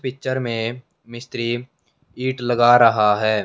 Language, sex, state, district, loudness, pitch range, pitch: Hindi, male, Haryana, Jhajjar, -19 LUFS, 115-130 Hz, 120 Hz